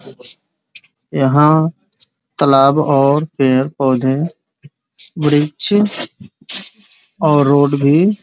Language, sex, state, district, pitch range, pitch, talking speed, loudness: Hindi, male, Bihar, East Champaran, 140-185 Hz, 150 Hz, 65 wpm, -14 LUFS